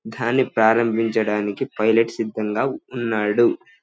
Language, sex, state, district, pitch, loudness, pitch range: Telugu, male, Andhra Pradesh, Anantapur, 115 Hz, -20 LUFS, 110-120 Hz